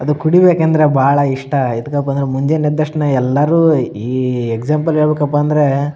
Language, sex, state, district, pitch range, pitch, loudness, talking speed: Kannada, male, Karnataka, Bellary, 135-150 Hz, 145 Hz, -14 LUFS, 160 wpm